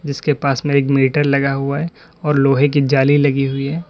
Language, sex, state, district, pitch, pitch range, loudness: Hindi, male, Uttar Pradesh, Lalitpur, 140 Hz, 135-145 Hz, -16 LUFS